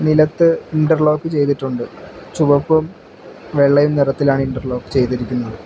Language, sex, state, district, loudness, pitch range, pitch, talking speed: Malayalam, male, Kerala, Kollam, -16 LUFS, 130-155 Hz, 140 Hz, 85 wpm